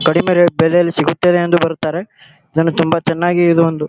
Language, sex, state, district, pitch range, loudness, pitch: Kannada, male, Karnataka, Gulbarga, 160-175 Hz, -14 LUFS, 165 Hz